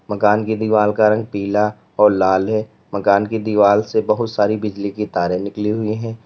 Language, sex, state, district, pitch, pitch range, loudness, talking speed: Hindi, male, Uttar Pradesh, Lalitpur, 105 Hz, 100-110 Hz, -17 LUFS, 200 wpm